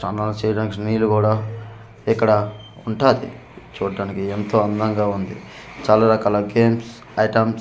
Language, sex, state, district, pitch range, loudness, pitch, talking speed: Telugu, male, Andhra Pradesh, Manyam, 105-110 Hz, -20 LUFS, 110 Hz, 120 wpm